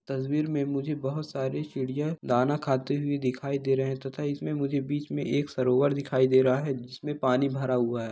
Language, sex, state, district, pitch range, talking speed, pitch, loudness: Hindi, male, Bihar, East Champaran, 130-145 Hz, 215 wpm, 135 Hz, -28 LUFS